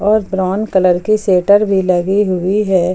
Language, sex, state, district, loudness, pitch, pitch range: Hindi, female, Jharkhand, Palamu, -13 LUFS, 190 Hz, 185-205 Hz